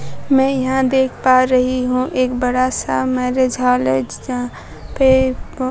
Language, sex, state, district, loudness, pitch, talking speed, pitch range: Hindi, male, Bihar, Kaimur, -16 LUFS, 255 Hz, 145 wpm, 250-260 Hz